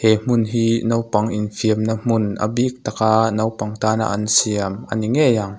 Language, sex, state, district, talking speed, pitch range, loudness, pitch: Mizo, male, Mizoram, Aizawl, 180 wpm, 105-115 Hz, -19 LUFS, 110 Hz